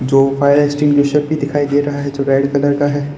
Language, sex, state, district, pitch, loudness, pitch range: Hindi, male, Gujarat, Valsad, 145 Hz, -14 LUFS, 140-145 Hz